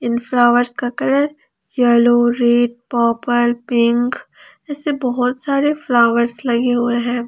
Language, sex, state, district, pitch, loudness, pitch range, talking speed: Hindi, female, Jharkhand, Ranchi, 240 Hz, -16 LUFS, 240-250 Hz, 115 wpm